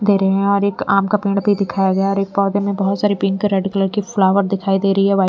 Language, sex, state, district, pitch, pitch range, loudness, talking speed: Hindi, female, Bihar, Patna, 195 Hz, 195-200 Hz, -17 LUFS, 305 wpm